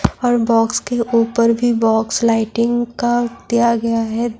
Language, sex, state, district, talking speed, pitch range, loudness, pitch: Urdu, female, Bihar, Saharsa, 150 wpm, 230-240 Hz, -16 LUFS, 235 Hz